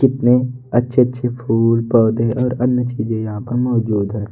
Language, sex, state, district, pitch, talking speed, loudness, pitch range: Hindi, male, Odisha, Nuapada, 120 Hz, 165 wpm, -17 LUFS, 115-125 Hz